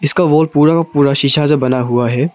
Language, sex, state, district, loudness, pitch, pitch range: Hindi, male, Arunachal Pradesh, Papum Pare, -12 LUFS, 145 Hz, 135-155 Hz